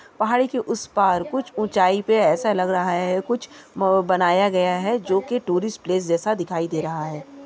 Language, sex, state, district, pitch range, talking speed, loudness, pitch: Hindi, female, Chhattisgarh, Kabirdham, 180-220 Hz, 195 wpm, -21 LUFS, 190 Hz